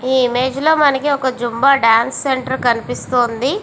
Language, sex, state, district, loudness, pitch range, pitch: Telugu, female, Andhra Pradesh, Visakhapatnam, -15 LUFS, 245-275 Hz, 260 Hz